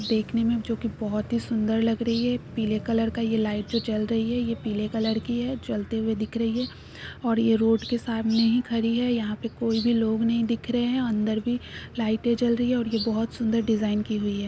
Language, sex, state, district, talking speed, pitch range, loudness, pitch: Hindi, female, Bihar, East Champaran, 250 wpm, 220-235 Hz, -26 LUFS, 230 Hz